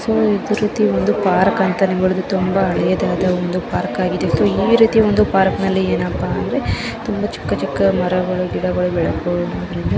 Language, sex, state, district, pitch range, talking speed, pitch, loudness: Kannada, female, Karnataka, Raichur, 180-210 Hz, 125 wpm, 190 Hz, -17 LUFS